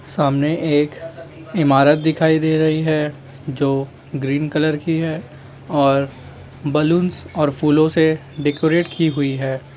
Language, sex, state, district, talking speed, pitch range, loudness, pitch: Hindi, male, Jharkhand, Jamtara, 130 wpm, 140-160 Hz, -18 LUFS, 150 Hz